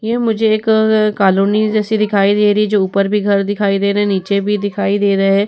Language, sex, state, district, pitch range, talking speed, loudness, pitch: Hindi, female, Uttar Pradesh, Etah, 200-215 Hz, 250 wpm, -14 LUFS, 205 Hz